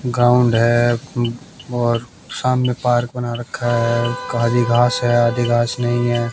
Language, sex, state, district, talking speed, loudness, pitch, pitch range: Hindi, male, Haryana, Jhajjar, 125 wpm, -18 LUFS, 120 Hz, 120-125 Hz